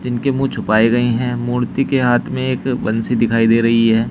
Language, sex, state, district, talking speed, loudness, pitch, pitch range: Hindi, male, Uttar Pradesh, Shamli, 220 wpm, -16 LUFS, 120 Hz, 115-125 Hz